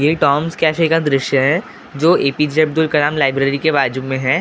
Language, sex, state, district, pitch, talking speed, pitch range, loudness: Hindi, male, Maharashtra, Gondia, 150 Hz, 215 wpm, 135-160 Hz, -15 LUFS